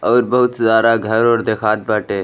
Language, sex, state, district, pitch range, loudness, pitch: Bhojpuri, male, Uttar Pradesh, Gorakhpur, 110-120 Hz, -15 LUFS, 110 Hz